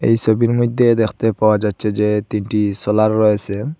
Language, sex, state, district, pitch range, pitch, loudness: Bengali, male, Assam, Hailakandi, 105-115 Hz, 110 Hz, -16 LUFS